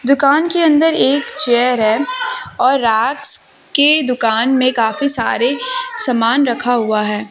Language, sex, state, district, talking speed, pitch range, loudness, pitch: Hindi, female, Jharkhand, Deoghar, 140 wpm, 240-300 Hz, -14 LUFS, 265 Hz